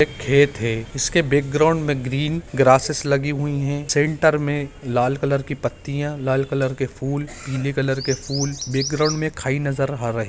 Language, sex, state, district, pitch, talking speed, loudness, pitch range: Hindi, male, Uttarakhand, Uttarkashi, 140 Hz, 180 wpm, -21 LUFS, 135-145 Hz